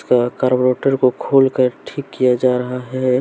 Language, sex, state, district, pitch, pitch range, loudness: Hindi, male, Jharkhand, Deoghar, 130 Hz, 125-130 Hz, -16 LUFS